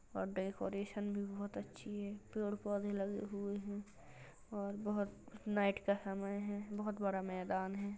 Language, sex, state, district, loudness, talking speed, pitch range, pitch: Hindi, female, Uttar Pradesh, Jalaun, -42 LUFS, 165 wpm, 200-205 Hz, 205 Hz